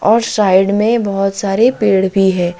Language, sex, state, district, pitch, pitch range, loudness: Hindi, male, Jharkhand, Deoghar, 200 Hz, 190-220 Hz, -13 LUFS